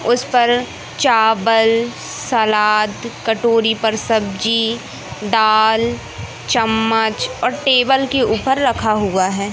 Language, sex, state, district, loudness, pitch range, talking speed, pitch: Hindi, male, Madhya Pradesh, Katni, -16 LUFS, 215-240 Hz, 95 wpm, 225 Hz